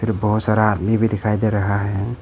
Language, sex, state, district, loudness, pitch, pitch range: Hindi, male, Arunachal Pradesh, Papum Pare, -19 LUFS, 105 Hz, 105-110 Hz